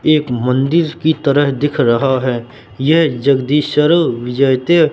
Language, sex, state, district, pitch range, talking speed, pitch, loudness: Hindi, male, Madhya Pradesh, Katni, 130-155 Hz, 135 wpm, 140 Hz, -14 LUFS